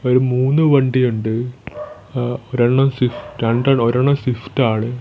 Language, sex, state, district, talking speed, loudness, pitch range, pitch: Malayalam, male, Kerala, Thiruvananthapuram, 120 wpm, -17 LUFS, 120-135 Hz, 125 Hz